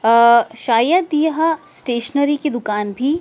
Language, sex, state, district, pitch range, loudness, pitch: Hindi, female, Madhya Pradesh, Dhar, 230-300 Hz, -16 LUFS, 255 Hz